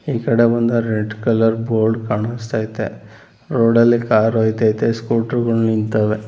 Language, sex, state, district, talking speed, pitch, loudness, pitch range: Kannada, male, Karnataka, Mysore, 145 wpm, 115 Hz, -17 LUFS, 110-115 Hz